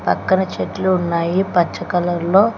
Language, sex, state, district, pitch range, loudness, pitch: Telugu, female, Telangana, Hyderabad, 175-190 Hz, -18 LUFS, 180 Hz